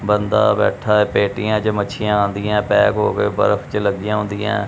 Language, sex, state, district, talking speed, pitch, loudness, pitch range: Punjabi, male, Punjab, Kapurthala, 165 wpm, 105 Hz, -17 LUFS, 100-105 Hz